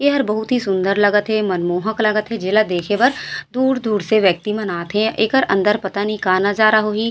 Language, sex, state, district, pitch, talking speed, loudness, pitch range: Chhattisgarhi, female, Chhattisgarh, Raigarh, 210 Hz, 220 wpm, -17 LUFS, 195-220 Hz